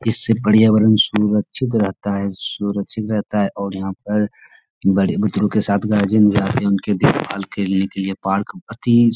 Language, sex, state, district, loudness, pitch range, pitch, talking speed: Hindi, male, Bihar, Jamui, -18 LUFS, 100-110 Hz, 105 Hz, 175 wpm